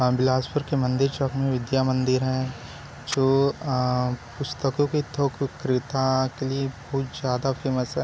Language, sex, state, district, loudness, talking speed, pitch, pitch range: Hindi, male, Chhattisgarh, Bilaspur, -25 LUFS, 155 wpm, 135 Hz, 130-140 Hz